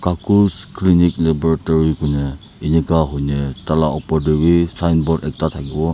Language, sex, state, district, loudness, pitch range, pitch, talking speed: Nagamese, male, Nagaland, Dimapur, -17 LUFS, 75-85 Hz, 80 Hz, 130 wpm